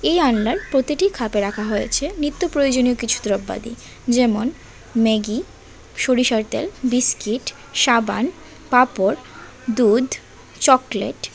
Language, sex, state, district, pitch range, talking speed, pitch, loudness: Bengali, female, Tripura, West Tripura, 220-270 Hz, 105 wpm, 245 Hz, -19 LUFS